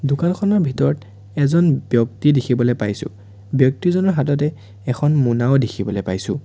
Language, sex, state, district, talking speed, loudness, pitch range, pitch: Assamese, male, Assam, Sonitpur, 110 wpm, -18 LUFS, 100-150 Hz, 130 Hz